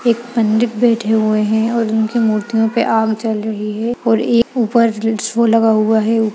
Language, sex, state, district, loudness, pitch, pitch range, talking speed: Kumaoni, female, Uttarakhand, Uttarkashi, -15 LUFS, 225 Hz, 220-235 Hz, 180 wpm